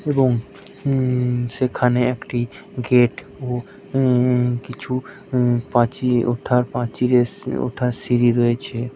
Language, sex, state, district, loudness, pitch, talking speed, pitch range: Bengali, male, West Bengal, Jhargram, -20 LUFS, 125 Hz, 95 wpm, 120-130 Hz